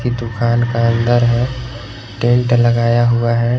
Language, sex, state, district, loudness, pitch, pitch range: Hindi, male, Jharkhand, Garhwa, -15 LUFS, 120 Hz, 115-120 Hz